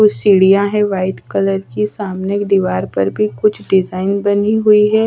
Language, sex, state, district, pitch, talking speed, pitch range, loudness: Hindi, female, Chhattisgarh, Raipur, 200 Hz, 165 wpm, 190-210 Hz, -15 LUFS